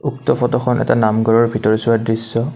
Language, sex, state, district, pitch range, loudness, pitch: Assamese, male, Assam, Kamrup Metropolitan, 110-115 Hz, -16 LUFS, 115 Hz